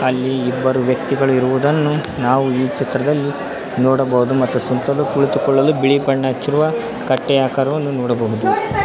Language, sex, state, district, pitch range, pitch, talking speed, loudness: Kannada, male, Karnataka, Koppal, 130-140 Hz, 135 Hz, 115 wpm, -17 LUFS